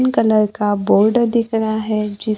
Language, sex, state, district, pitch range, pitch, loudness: Hindi, male, Maharashtra, Gondia, 210-225 Hz, 215 Hz, -16 LUFS